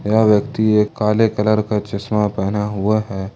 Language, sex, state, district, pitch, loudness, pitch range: Hindi, male, Jharkhand, Ranchi, 105 Hz, -17 LUFS, 105-110 Hz